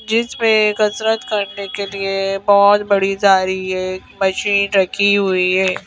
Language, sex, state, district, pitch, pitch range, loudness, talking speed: Hindi, female, Madhya Pradesh, Bhopal, 200 Hz, 190-205 Hz, -16 LUFS, 155 wpm